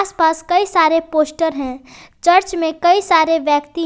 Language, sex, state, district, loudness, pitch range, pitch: Hindi, female, Jharkhand, Palamu, -15 LUFS, 315-350 Hz, 330 Hz